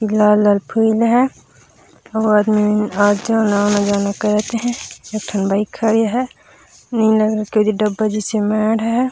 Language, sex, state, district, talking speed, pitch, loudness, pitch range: Chhattisgarhi, female, Chhattisgarh, Raigarh, 165 wpm, 215 Hz, -16 LUFS, 210-225 Hz